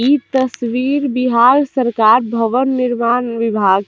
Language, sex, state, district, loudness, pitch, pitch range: Bajjika, female, Bihar, Vaishali, -14 LUFS, 250 Hz, 230-260 Hz